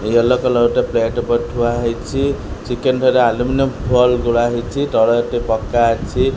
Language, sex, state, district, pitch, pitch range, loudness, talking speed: Odia, male, Odisha, Khordha, 120 Hz, 115-125 Hz, -16 LUFS, 160 wpm